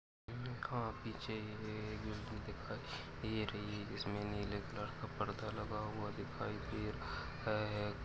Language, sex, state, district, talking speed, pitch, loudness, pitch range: Hindi, male, Maharashtra, Sindhudurg, 140 wpm, 105 Hz, -44 LUFS, 105-110 Hz